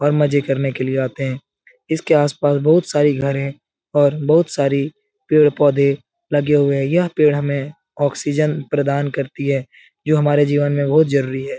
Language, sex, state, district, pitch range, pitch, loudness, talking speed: Hindi, male, Bihar, Jahanabad, 140-150 Hz, 145 Hz, -17 LUFS, 180 wpm